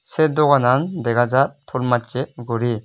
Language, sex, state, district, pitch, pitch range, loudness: Chakma, male, Tripura, West Tripura, 125 Hz, 120-140 Hz, -19 LUFS